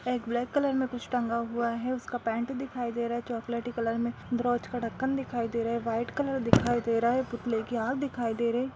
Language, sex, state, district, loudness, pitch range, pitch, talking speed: Hindi, female, Bihar, Saharsa, -30 LUFS, 235-250 Hz, 240 Hz, 255 wpm